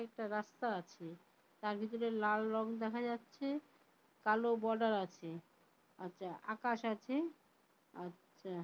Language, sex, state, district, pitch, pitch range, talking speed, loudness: Bengali, female, West Bengal, Paschim Medinipur, 220 Hz, 185-230 Hz, 110 wpm, -40 LUFS